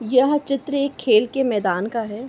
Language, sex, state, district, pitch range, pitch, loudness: Hindi, female, Uttar Pradesh, Ghazipur, 215-275 Hz, 250 Hz, -20 LUFS